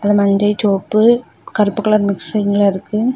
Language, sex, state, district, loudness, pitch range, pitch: Tamil, female, Tamil Nadu, Kanyakumari, -15 LUFS, 200-215 Hz, 205 Hz